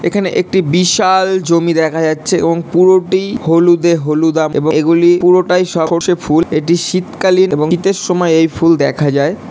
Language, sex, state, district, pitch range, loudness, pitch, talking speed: Bengali, male, West Bengal, Malda, 160-185 Hz, -12 LUFS, 170 Hz, 160 wpm